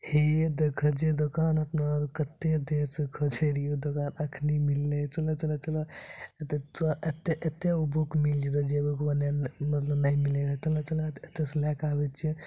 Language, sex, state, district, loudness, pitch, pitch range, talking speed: Maithili, male, Bihar, Supaul, -29 LUFS, 150 Hz, 145-155 Hz, 200 wpm